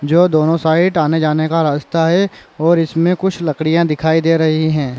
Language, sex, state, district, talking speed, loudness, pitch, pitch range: Chhattisgarhi, male, Chhattisgarh, Raigarh, 180 wpm, -14 LUFS, 160 Hz, 155-170 Hz